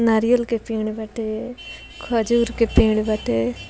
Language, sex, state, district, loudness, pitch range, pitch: Bhojpuri, female, Bihar, Muzaffarpur, -21 LUFS, 215-235 Hz, 225 Hz